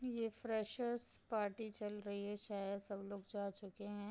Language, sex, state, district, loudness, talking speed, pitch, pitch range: Hindi, female, Bihar, Darbhanga, -42 LUFS, 175 wpm, 205 Hz, 200-220 Hz